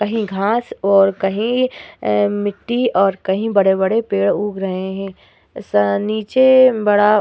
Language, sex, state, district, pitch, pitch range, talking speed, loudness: Hindi, female, Uttar Pradesh, Hamirpur, 205 Hz, 195-220 Hz, 140 wpm, -16 LUFS